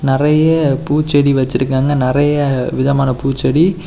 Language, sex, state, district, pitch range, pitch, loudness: Tamil, male, Tamil Nadu, Kanyakumari, 135-150 Hz, 140 Hz, -14 LUFS